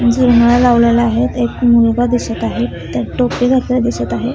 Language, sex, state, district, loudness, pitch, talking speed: Marathi, female, Maharashtra, Solapur, -13 LUFS, 235 Hz, 165 wpm